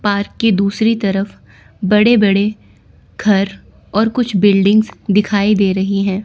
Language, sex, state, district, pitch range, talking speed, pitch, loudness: Hindi, female, Chandigarh, Chandigarh, 195-215 Hz, 135 wpm, 200 Hz, -14 LUFS